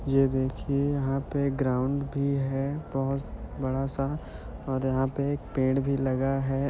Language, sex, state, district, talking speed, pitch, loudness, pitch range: Hindi, male, Uttar Pradesh, Jyotiba Phule Nagar, 160 wpm, 135 Hz, -28 LUFS, 135-140 Hz